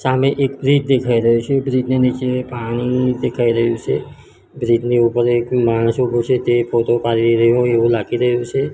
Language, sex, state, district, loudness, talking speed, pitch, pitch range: Gujarati, male, Gujarat, Gandhinagar, -16 LUFS, 200 wpm, 120 Hz, 115-130 Hz